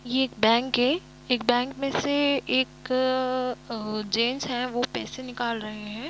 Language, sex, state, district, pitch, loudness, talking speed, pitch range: Hindi, female, Jharkhand, Jamtara, 250 Hz, -26 LUFS, 145 wpm, 235-260 Hz